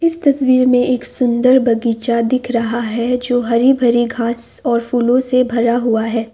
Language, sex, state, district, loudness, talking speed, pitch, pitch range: Hindi, female, Assam, Kamrup Metropolitan, -15 LUFS, 180 wpm, 240 Hz, 235-255 Hz